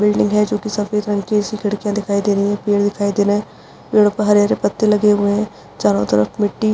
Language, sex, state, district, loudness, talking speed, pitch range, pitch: Hindi, female, Uttarakhand, Uttarkashi, -17 LUFS, 260 wpm, 205-210 Hz, 205 Hz